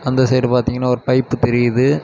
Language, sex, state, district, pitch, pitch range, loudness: Tamil, male, Tamil Nadu, Kanyakumari, 125 Hz, 125-130 Hz, -16 LUFS